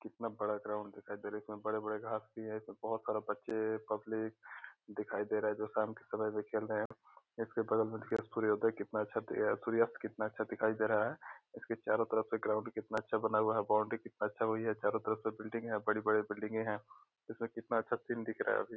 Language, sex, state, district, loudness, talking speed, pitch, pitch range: Hindi, male, Bihar, Gopalganj, -37 LUFS, 240 wpm, 110 Hz, 105-110 Hz